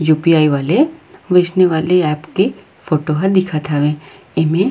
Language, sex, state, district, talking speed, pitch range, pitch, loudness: Chhattisgarhi, female, Chhattisgarh, Rajnandgaon, 165 wpm, 155-185 Hz, 160 Hz, -15 LUFS